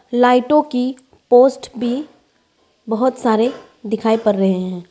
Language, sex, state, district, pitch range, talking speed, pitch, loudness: Hindi, female, Arunachal Pradesh, Lower Dibang Valley, 220-255 Hz, 120 wpm, 245 Hz, -17 LUFS